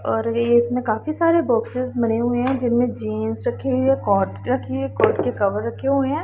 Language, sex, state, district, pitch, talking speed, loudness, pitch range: Hindi, female, Punjab, Pathankot, 235 Hz, 230 wpm, -21 LUFS, 200-260 Hz